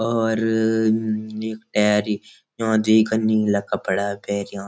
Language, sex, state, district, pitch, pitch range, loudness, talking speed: Garhwali, male, Uttarakhand, Uttarkashi, 110 Hz, 105-110 Hz, -21 LUFS, 140 wpm